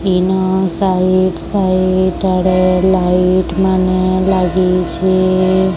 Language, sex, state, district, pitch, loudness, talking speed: Odia, male, Odisha, Sambalpur, 185 Hz, -13 LUFS, 75 wpm